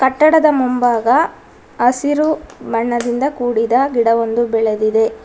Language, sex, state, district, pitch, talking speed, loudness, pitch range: Kannada, female, Karnataka, Bangalore, 240 Hz, 80 wpm, -15 LUFS, 230-270 Hz